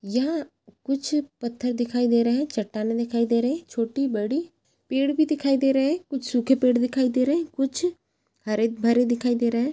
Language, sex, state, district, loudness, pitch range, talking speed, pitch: Hindi, female, Bihar, Jahanabad, -24 LUFS, 235-275 Hz, 210 wpm, 250 Hz